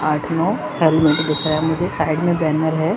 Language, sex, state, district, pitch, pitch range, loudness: Hindi, female, Jharkhand, Jamtara, 160 Hz, 155-165 Hz, -18 LUFS